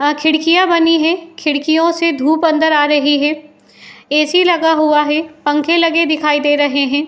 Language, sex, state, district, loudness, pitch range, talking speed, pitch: Hindi, female, Uttar Pradesh, Etah, -13 LUFS, 295-330 Hz, 185 wpm, 310 Hz